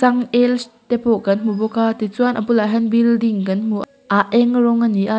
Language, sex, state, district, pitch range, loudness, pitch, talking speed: Mizo, female, Mizoram, Aizawl, 215-240 Hz, -17 LUFS, 230 Hz, 230 wpm